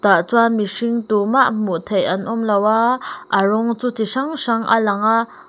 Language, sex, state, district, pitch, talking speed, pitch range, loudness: Mizo, female, Mizoram, Aizawl, 225 Hz, 195 wpm, 205-235 Hz, -17 LUFS